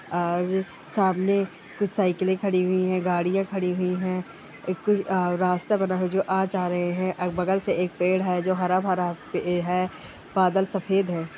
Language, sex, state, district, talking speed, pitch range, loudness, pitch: Hindi, female, Chhattisgarh, Korba, 185 wpm, 180-190 Hz, -25 LUFS, 185 Hz